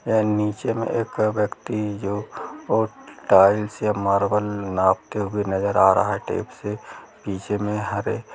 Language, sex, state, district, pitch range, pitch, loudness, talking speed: Hindi, male, Chhattisgarh, Rajnandgaon, 100-105 Hz, 105 Hz, -22 LUFS, 135 wpm